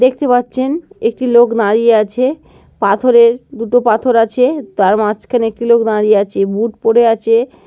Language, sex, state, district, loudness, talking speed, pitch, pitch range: Bengali, female, West Bengal, Jhargram, -13 LUFS, 150 wpm, 235 Hz, 220-250 Hz